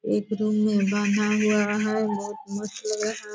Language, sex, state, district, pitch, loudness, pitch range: Hindi, female, Bihar, Purnia, 210 Hz, -25 LUFS, 205-215 Hz